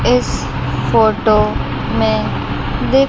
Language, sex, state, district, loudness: Hindi, female, Chandigarh, Chandigarh, -16 LUFS